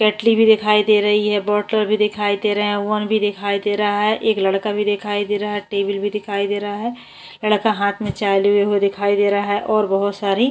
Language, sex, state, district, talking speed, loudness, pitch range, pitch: Hindi, female, Uttar Pradesh, Jyotiba Phule Nagar, 255 wpm, -18 LUFS, 200-215 Hz, 205 Hz